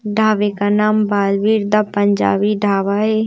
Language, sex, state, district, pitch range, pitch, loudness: Hindi, female, Madhya Pradesh, Bhopal, 200-215 Hz, 205 Hz, -16 LUFS